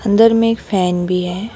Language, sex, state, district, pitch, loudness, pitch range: Hindi, female, West Bengal, Alipurduar, 205 Hz, -15 LUFS, 180-225 Hz